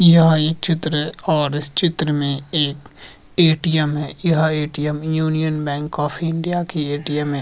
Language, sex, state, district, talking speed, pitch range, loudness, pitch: Hindi, male, Uttarakhand, Tehri Garhwal, 160 wpm, 150-160 Hz, -19 LUFS, 155 Hz